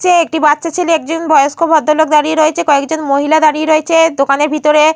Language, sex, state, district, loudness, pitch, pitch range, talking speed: Bengali, female, Jharkhand, Jamtara, -11 LUFS, 310 Hz, 300-325 Hz, 160 wpm